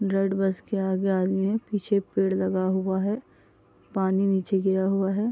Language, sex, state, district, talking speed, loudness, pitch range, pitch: Hindi, female, Bihar, East Champaran, 180 wpm, -25 LUFS, 190-200 Hz, 195 Hz